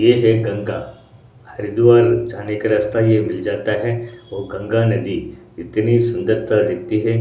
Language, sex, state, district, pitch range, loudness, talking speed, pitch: Hindi, male, Odisha, Sambalpur, 110-120 Hz, -18 LUFS, 160 wpm, 115 Hz